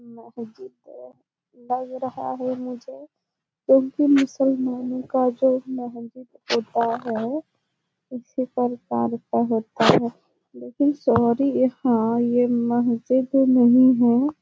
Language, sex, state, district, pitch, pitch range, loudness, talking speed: Hindi, female, Bihar, Jahanabad, 250 Hz, 235-260 Hz, -21 LUFS, 100 wpm